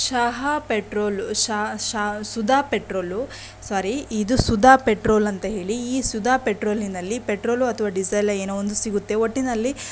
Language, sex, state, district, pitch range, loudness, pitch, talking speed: Kannada, female, Karnataka, Shimoga, 205-240 Hz, -22 LUFS, 220 Hz, 135 wpm